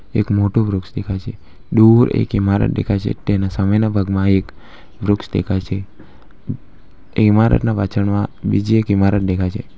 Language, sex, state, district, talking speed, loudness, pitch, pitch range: Gujarati, male, Gujarat, Valsad, 160 wpm, -17 LUFS, 100 Hz, 95-110 Hz